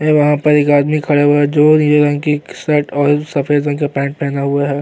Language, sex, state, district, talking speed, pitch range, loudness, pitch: Hindi, male, Uttarakhand, Tehri Garhwal, 260 wpm, 145-150 Hz, -13 LUFS, 145 Hz